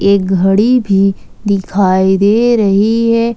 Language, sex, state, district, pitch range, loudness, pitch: Hindi, female, Jharkhand, Ranchi, 195-230 Hz, -11 LUFS, 200 Hz